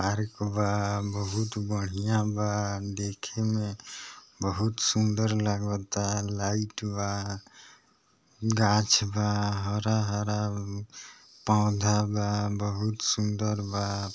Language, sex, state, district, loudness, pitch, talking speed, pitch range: Bhojpuri, male, Bihar, East Champaran, -29 LUFS, 105 Hz, 80 wpm, 100-105 Hz